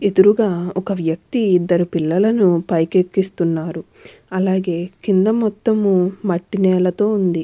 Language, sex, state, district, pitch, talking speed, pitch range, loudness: Telugu, female, Andhra Pradesh, Krishna, 185 Hz, 95 wpm, 175-200 Hz, -17 LUFS